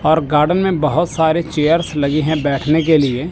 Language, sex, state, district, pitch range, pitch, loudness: Hindi, male, Chandigarh, Chandigarh, 150-165 Hz, 155 Hz, -15 LUFS